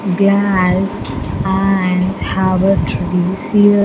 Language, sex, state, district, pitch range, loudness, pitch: English, female, Andhra Pradesh, Sri Satya Sai, 185-195 Hz, -15 LUFS, 190 Hz